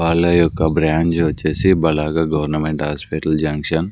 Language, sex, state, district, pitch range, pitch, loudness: Telugu, male, Andhra Pradesh, Sri Satya Sai, 75-85 Hz, 80 Hz, -17 LUFS